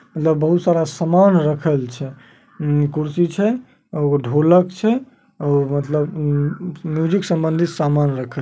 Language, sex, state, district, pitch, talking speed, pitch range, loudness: Magahi, male, Bihar, Samastipur, 160 Hz, 135 wpm, 145-180 Hz, -18 LUFS